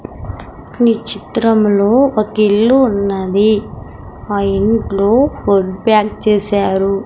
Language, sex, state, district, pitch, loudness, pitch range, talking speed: Telugu, female, Andhra Pradesh, Sri Satya Sai, 210 Hz, -13 LUFS, 200-225 Hz, 95 wpm